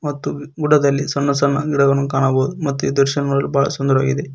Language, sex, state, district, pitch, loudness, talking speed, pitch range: Kannada, male, Karnataka, Koppal, 140 Hz, -18 LUFS, 165 wpm, 140-145 Hz